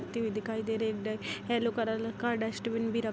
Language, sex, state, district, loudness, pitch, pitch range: Hindi, female, Bihar, Darbhanga, -33 LUFS, 225 Hz, 220-230 Hz